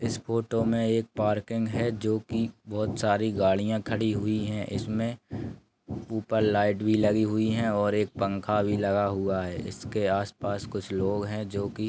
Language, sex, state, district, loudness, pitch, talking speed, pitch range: Hindi, male, Bihar, Bhagalpur, -28 LUFS, 105 Hz, 180 wpm, 100-110 Hz